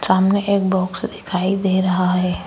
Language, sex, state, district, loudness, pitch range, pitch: Hindi, female, Goa, North and South Goa, -19 LUFS, 185-195 Hz, 190 Hz